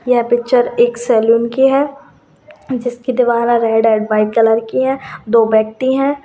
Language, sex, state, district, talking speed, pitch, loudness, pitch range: Hindi, female, Rajasthan, Churu, 165 wpm, 240 Hz, -14 LUFS, 225-260 Hz